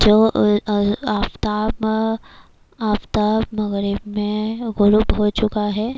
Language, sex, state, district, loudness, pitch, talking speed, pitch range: Urdu, female, Bihar, Kishanganj, -19 LUFS, 210 Hz, 100 wpm, 210-220 Hz